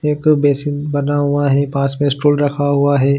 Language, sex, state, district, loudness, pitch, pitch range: Hindi, male, Chhattisgarh, Bilaspur, -15 LUFS, 145 Hz, 140-145 Hz